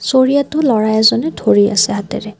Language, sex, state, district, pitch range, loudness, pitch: Assamese, female, Assam, Kamrup Metropolitan, 210-270 Hz, -13 LUFS, 230 Hz